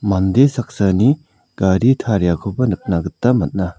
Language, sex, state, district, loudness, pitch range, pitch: Garo, male, Meghalaya, South Garo Hills, -17 LUFS, 95-125 Hz, 100 Hz